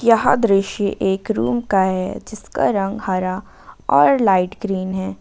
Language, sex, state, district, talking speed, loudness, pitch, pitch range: Hindi, female, Jharkhand, Ranchi, 150 wpm, -18 LUFS, 195 Hz, 190-220 Hz